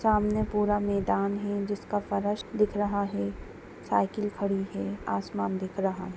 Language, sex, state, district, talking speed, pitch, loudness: Hindi, female, Bihar, Sitamarhi, 155 wpm, 200 Hz, -29 LUFS